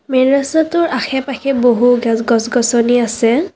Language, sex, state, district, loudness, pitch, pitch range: Assamese, female, Assam, Kamrup Metropolitan, -14 LUFS, 250 Hz, 235-275 Hz